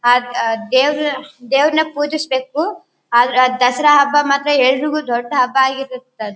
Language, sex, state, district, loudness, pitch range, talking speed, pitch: Kannada, female, Karnataka, Bellary, -15 LUFS, 250-290 Hz, 140 wpm, 265 Hz